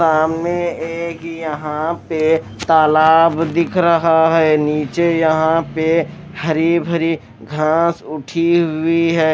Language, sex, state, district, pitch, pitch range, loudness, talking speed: Hindi, male, Chandigarh, Chandigarh, 165 Hz, 155-165 Hz, -16 LUFS, 110 wpm